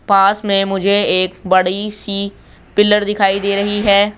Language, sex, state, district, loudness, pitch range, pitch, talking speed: Hindi, male, Rajasthan, Jaipur, -15 LUFS, 195-205 Hz, 200 Hz, 160 wpm